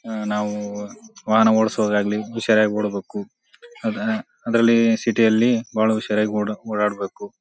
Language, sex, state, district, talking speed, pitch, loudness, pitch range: Kannada, male, Karnataka, Bijapur, 120 wpm, 110 Hz, -20 LUFS, 105-115 Hz